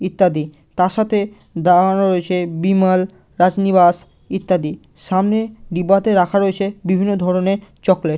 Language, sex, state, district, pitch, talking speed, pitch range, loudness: Bengali, male, West Bengal, Malda, 185 Hz, 115 wpm, 180-195 Hz, -17 LUFS